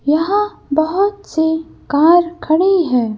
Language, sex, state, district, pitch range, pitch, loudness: Hindi, female, Madhya Pradesh, Bhopal, 310-380 Hz, 320 Hz, -15 LUFS